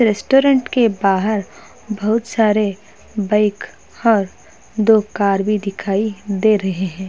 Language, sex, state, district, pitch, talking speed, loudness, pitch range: Hindi, female, Uttar Pradesh, Hamirpur, 210 Hz, 120 wpm, -17 LUFS, 200-220 Hz